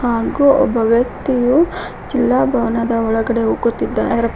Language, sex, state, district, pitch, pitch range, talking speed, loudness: Kannada, female, Karnataka, Koppal, 235 Hz, 230-260 Hz, 95 wpm, -16 LUFS